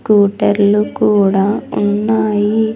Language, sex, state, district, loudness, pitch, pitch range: Telugu, female, Andhra Pradesh, Sri Satya Sai, -14 LUFS, 205 Hz, 205-215 Hz